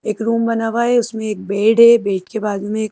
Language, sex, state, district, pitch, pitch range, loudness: Hindi, female, Madhya Pradesh, Bhopal, 220 Hz, 210-230 Hz, -16 LUFS